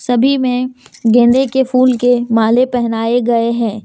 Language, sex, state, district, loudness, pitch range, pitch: Hindi, female, Jharkhand, Deoghar, -13 LUFS, 230-255 Hz, 245 Hz